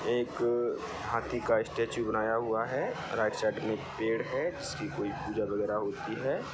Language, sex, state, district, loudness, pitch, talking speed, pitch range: Hindi, male, Bihar, Saran, -32 LUFS, 115 Hz, 185 wpm, 110-120 Hz